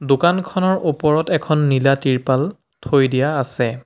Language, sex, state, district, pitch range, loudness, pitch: Assamese, male, Assam, Sonitpur, 135-160 Hz, -18 LUFS, 140 Hz